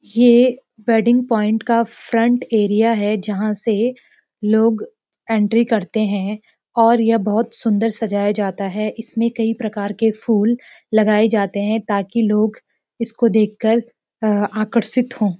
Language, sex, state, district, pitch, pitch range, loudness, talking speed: Hindi, female, Uttarakhand, Uttarkashi, 220 Hz, 210-230 Hz, -18 LUFS, 135 wpm